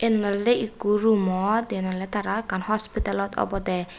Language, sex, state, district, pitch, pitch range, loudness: Chakma, female, Tripura, West Tripura, 205 Hz, 185-220 Hz, -22 LUFS